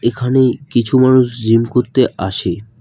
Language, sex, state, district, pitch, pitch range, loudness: Bengali, male, West Bengal, Alipurduar, 120 Hz, 115-130 Hz, -14 LUFS